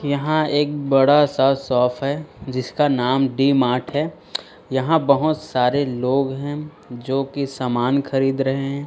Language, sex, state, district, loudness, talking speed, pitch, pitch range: Hindi, male, Chhattisgarh, Raipur, -20 LUFS, 140 wpm, 135 Hz, 130-145 Hz